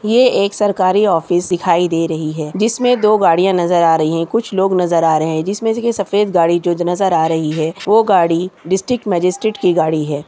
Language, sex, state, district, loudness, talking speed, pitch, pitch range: Hindi, female, Chhattisgarh, Kabirdham, -15 LUFS, 220 wpm, 180 Hz, 165-205 Hz